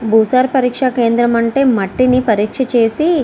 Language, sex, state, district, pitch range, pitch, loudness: Telugu, female, Andhra Pradesh, Srikakulam, 230-260 Hz, 245 Hz, -13 LUFS